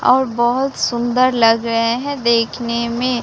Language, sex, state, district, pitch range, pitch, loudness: Hindi, female, Bihar, Katihar, 235-255 Hz, 240 Hz, -16 LUFS